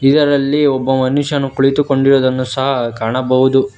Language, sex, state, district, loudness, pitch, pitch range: Kannada, male, Karnataka, Bangalore, -14 LUFS, 135 Hz, 130-140 Hz